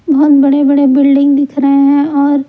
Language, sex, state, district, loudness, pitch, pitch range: Hindi, female, Bihar, Patna, -9 LUFS, 280 Hz, 275-285 Hz